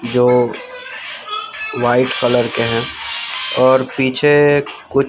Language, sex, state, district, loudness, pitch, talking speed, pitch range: Hindi, male, Gujarat, Gandhinagar, -16 LUFS, 130 Hz, 95 wpm, 125-145 Hz